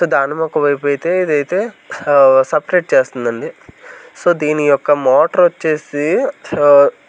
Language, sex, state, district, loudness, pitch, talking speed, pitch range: Telugu, male, Andhra Pradesh, Sri Satya Sai, -14 LUFS, 155 Hz, 125 wpm, 145-180 Hz